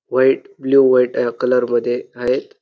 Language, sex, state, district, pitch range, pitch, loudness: Marathi, male, Maharashtra, Dhule, 125-135 Hz, 125 Hz, -17 LUFS